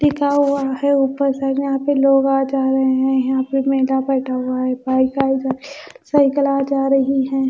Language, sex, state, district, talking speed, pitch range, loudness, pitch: Hindi, female, Bihar, Katihar, 200 wpm, 265-275 Hz, -17 LUFS, 270 Hz